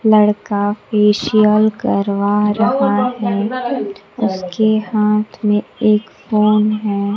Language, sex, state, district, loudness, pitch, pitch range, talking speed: Hindi, female, Bihar, Kaimur, -16 LUFS, 210 Hz, 205-215 Hz, 90 wpm